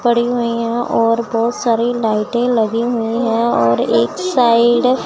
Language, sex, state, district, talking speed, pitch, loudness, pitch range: Hindi, female, Chandigarh, Chandigarh, 165 wpm, 235 Hz, -15 LUFS, 225-240 Hz